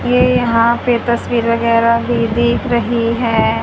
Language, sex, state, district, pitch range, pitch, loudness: Hindi, female, Haryana, Charkhi Dadri, 230-240 Hz, 235 Hz, -14 LUFS